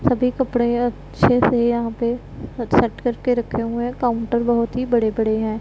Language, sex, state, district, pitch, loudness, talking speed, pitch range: Hindi, female, Punjab, Pathankot, 235 Hz, -20 LUFS, 170 wpm, 230-245 Hz